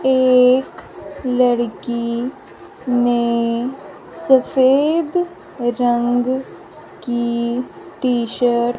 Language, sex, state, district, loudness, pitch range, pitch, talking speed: Hindi, female, Punjab, Fazilka, -18 LUFS, 240-260 Hz, 245 Hz, 60 wpm